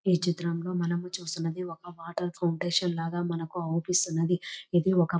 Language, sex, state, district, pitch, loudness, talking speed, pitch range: Telugu, female, Telangana, Nalgonda, 175 Hz, -29 LUFS, 150 wpm, 170-180 Hz